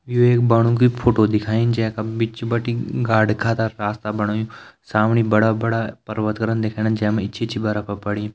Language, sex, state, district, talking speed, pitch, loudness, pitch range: Garhwali, male, Uttarakhand, Uttarkashi, 195 wpm, 110 Hz, -20 LUFS, 105-115 Hz